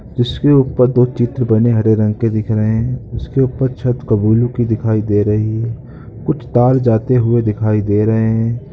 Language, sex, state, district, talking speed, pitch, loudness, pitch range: Hindi, male, Uttar Pradesh, Varanasi, 190 wpm, 115 Hz, -15 LUFS, 110-125 Hz